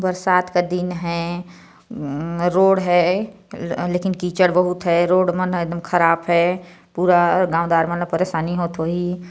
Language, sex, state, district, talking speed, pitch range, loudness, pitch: Hindi, female, Chhattisgarh, Sarguja, 135 wpm, 170-180 Hz, -19 LUFS, 175 Hz